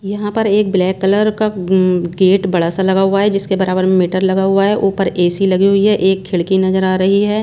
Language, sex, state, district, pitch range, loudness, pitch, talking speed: Hindi, female, Bihar, West Champaran, 185-200 Hz, -14 LUFS, 190 Hz, 240 wpm